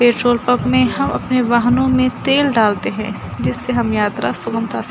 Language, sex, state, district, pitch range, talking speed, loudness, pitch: Hindi, female, Uttar Pradesh, Budaun, 225-255 Hz, 195 wpm, -16 LUFS, 245 Hz